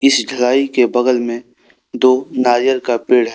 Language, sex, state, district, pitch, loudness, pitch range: Hindi, male, Jharkhand, Deoghar, 125 Hz, -15 LUFS, 120-130 Hz